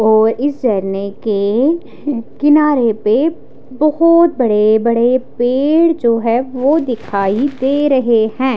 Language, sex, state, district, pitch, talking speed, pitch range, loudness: Hindi, female, Odisha, Khordha, 250 Hz, 110 wpm, 220-290 Hz, -14 LUFS